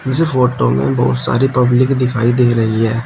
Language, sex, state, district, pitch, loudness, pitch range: Hindi, male, Uttar Pradesh, Shamli, 120 Hz, -14 LUFS, 115-130 Hz